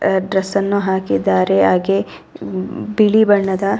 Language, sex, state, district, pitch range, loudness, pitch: Kannada, female, Karnataka, Raichur, 185-200 Hz, -16 LUFS, 190 Hz